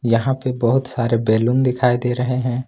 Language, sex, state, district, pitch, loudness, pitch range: Hindi, male, Jharkhand, Ranchi, 125 Hz, -18 LUFS, 120-130 Hz